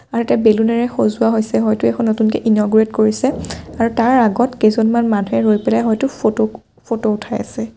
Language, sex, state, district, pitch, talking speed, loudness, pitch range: Assamese, female, Assam, Kamrup Metropolitan, 220 Hz, 170 wpm, -16 LUFS, 205-230 Hz